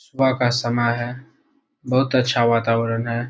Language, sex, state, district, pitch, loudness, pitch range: Hindi, male, Bihar, Saharsa, 120 Hz, -20 LUFS, 120-130 Hz